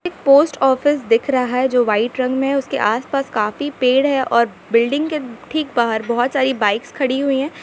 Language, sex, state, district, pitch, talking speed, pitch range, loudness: Hindi, female, Jharkhand, Sahebganj, 260 Hz, 210 wpm, 235-275 Hz, -17 LUFS